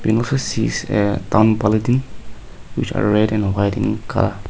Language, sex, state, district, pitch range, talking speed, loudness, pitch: English, male, Nagaland, Kohima, 105-120 Hz, 105 wpm, -18 LUFS, 110 Hz